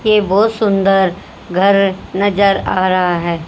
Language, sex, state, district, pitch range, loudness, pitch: Hindi, female, Haryana, Jhajjar, 185-200 Hz, -14 LUFS, 195 Hz